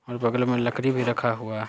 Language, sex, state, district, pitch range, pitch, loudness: Hindi, male, Bihar, Saran, 115-125 Hz, 120 Hz, -25 LUFS